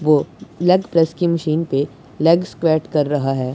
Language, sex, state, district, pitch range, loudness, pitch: Hindi, male, Punjab, Pathankot, 145-170 Hz, -18 LUFS, 160 Hz